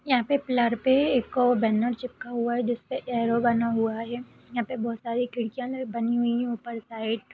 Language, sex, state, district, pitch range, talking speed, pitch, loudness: Hindi, female, Uttar Pradesh, Etah, 230-250 Hz, 220 wpm, 240 Hz, -26 LUFS